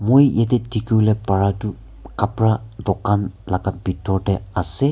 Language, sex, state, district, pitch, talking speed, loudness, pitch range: Nagamese, male, Nagaland, Kohima, 105 Hz, 145 wpm, -20 LUFS, 95-110 Hz